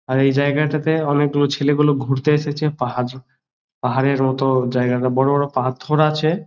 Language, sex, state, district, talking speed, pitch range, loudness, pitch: Bengali, male, West Bengal, Jalpaiguri, 165 wpm, 130-150 Hz, -18 LUFS, 140 Hz